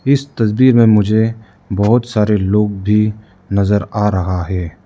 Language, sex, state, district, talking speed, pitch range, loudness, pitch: Hindi, male, Arunachal Pradesh, Lower Dibang Valley, 150 wpm, 100-110 Hz, -14 LUFS, 105 Hz